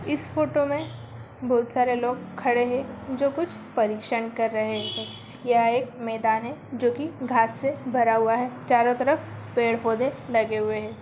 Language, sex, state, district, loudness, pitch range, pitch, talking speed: Hindi, female, Bihar, Sitamarhi, -25 LUFS, 225-255 Hz, 240 Hz, 165 wpm